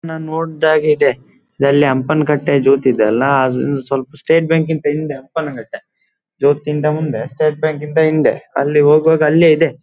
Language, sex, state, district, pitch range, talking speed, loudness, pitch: Kannada, male, Karnataka, Dakshina Kannada, 140-160 Hz, 130 wpm, -15 LUFS, 150 Hz